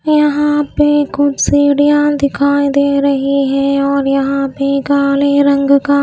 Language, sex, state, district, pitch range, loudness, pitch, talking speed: Hindi, female, Haryana, Rohtak, 275-285 Hz, -12 LUFS, 280 Hz, 150 wpm